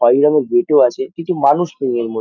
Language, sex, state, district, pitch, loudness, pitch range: Bengali, male, West Bengal, Dakshin Dinajpur, 140 Hz, -15 LUFS, 120-170 Hz